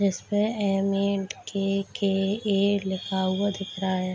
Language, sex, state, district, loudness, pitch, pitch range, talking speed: Hindi, female, Bihar, Darbhanga, -26 LUFS, 195 Hz, 190-200 Hz, 100 wpm